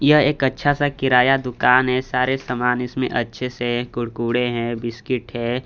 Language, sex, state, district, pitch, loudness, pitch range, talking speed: Hindi, male, Bihar, Kaimur, 125 Hz, -20 LUFS, 120-130 Hz, 170 wpm